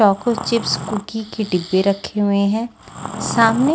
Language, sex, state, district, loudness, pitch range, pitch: Hindi, female, Maharashtra, Washim, -19 LUFS, 200-230 Hz, 210 Hz